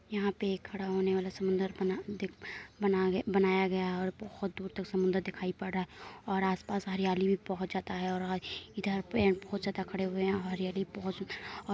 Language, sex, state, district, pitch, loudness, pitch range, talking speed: Hindi, female, Uttar Pradesh, Muzaffarnagar, 190 Hz, -34 LUFS, 185-195 Hz, 215 wpm